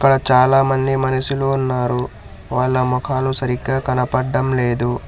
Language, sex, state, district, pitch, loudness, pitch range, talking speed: Telugu, male, Telangana, Hyderabad, 130 Hz, -18 LUFS, 125-135 Hz, 95 wpm